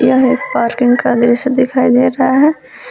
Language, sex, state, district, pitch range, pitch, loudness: Hindi, female, Jharkhand, Palamu, 245-260 Hz, 255 Hz, -12 LUFS